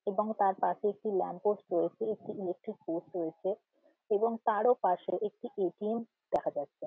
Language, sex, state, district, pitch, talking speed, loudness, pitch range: Bengali, female, West Bengal, Jhargram, 205 Hz, 165 wpm, -33 LUFS, 180-220 Hz